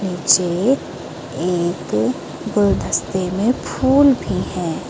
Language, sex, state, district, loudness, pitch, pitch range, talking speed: Hindi, female, Uttar Pradesh, Lucknow, -18 LUFS, 190 Hz, 175-245 Hz, 85 wpm